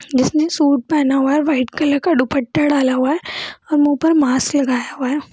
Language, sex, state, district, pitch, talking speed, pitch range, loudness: Hindi, female, Bihar, Jamui, 285 Hz, 215 wpm, 265-305 Hz, -17 LUFS